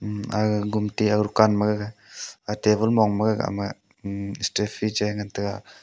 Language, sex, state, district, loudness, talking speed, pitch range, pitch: Wancho, male, Arunachal Pradesh, Longding, -24 LUFS, 155 wpm, 100-105 Hz, 105 Hz